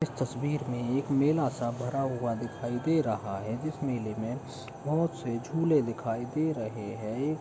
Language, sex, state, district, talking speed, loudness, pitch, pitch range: Hindi, male, Uttar Pradesh, Etah, 195 wpm, -31 LUFS, 130 Hz, 115-150 Hz